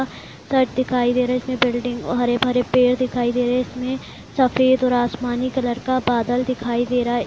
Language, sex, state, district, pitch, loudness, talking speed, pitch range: Hindi, female, Uttar Pradesh, Varanasi, 250 Hz, -20 LUFS, 205 wpm, 245-255 Hz